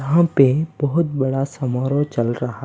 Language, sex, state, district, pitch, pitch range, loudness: Hindi, male, Bihar, Patna, 135 Hz, 130-150 Hz, -19 LUFS